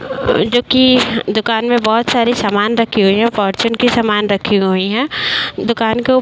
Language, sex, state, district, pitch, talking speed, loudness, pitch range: Hindi, female, Uttar Pradesh, Varanasi, 230 Hz, 200 wpm, -14 LUFS, 205-240 Hz